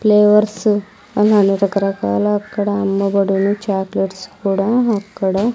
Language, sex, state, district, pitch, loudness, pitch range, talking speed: Telugu, female, Andhra Pradesh, Sri Satya Sai, 200 Hz, -16 LUFS, 195-210 Hz, 85 wpm